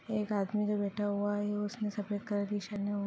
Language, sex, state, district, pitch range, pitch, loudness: Hindi, female, Rajasthan, Churu, 205-210 Hz, 205 Hz, -34 LUFS